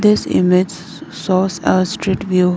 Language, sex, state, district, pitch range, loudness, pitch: English, female, Arunachal Pradesh, Lower Dibang Valley, 180-190 Hz, -16 LUFS, 185 Hz